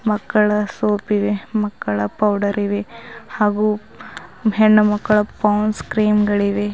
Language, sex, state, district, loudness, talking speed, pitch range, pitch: Kannada, female, Karnataka, Bidar, -18 LUFS, 105 wpm, 205-215 Hz, 210 Hz